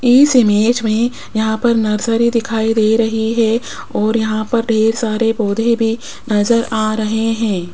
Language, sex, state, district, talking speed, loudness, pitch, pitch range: Hindi, female, Rajasthan, Jaipur, 165 wpm, -15 LUFS, 225 Hz, 220-230 Hz